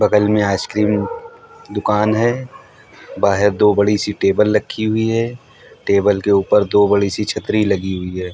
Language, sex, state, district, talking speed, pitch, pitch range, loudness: Hindi, male, Uttar Pradesh, Hamirpur, 160 wpm, 105 Hz, 100-110 Hz, -16 LUFS